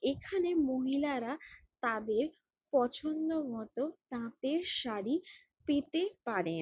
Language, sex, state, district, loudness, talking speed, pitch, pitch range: Bengali, female, West Bengal, Jalpaiguri, -35 LUFS, 90 wpm, 285 Hz, 240-320 Hz